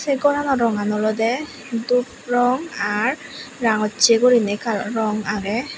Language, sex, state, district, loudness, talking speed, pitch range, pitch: Chakma, female, Tripura, West Tripura, -20 LUFS, 125 wpm, 215-265 Hz, 235 Hz